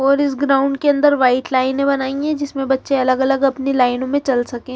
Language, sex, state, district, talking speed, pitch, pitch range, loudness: Hindi, female, Haryana, Charkhi Dadri, 225 wpm, 270 Hz, 260-280 Hz, -17 LUFS